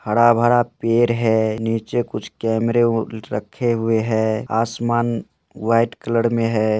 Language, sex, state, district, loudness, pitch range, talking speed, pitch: Hindi, male, Jharkhand, Jamtara, -19 LUFS, 110-120 Hz, 140 wpm, 115 Hz